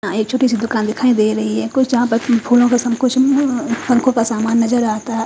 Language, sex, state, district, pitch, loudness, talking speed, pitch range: Hindi, female, Haryana, Charkhi Dadri, 240 Hz, -16 LUFS, 195 wpm, 225-250 Hz